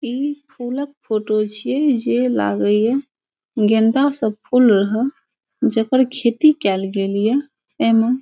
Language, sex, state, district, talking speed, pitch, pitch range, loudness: Maithili, female, Bihar, Saharsa, 130 wpm, 245 Hz, 215-270 Hz, -18 LUFS